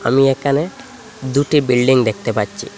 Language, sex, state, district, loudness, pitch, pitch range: Bengali, male, Assam, Hailakandi, -16 LUFS, 135 Hz, 125-150 Hz